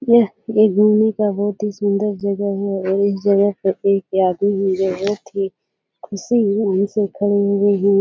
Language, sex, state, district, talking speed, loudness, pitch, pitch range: Hindi, female, Bihar, Jahanabad, 165 wpm, -18 LUFS, 200 Hz, 195-210 Hz